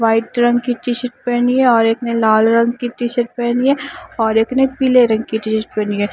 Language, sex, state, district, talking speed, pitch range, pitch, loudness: Hindi, female, Punjab, Fazilka, 255 wpm, 225-245 Hz, 240 Hz, -16 LUFS